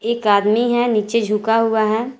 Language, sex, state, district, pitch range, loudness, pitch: Hindi, female, Jharkhand, Garhwa, 215-235 Hz, -17 LUFS, 225 Hz